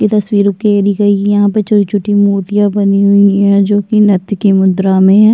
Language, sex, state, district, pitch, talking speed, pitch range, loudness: Hindi, female, Uttarakhand, Tehri Garhwal, 205 Hz, 215 wpm, 200-205 Hz, -10 LUFS